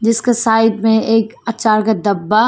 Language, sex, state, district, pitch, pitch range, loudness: Hindi, female, Arunachal Pradesh, Papum Pare, 225 Hz, 215-225 Hz, -14 LUFS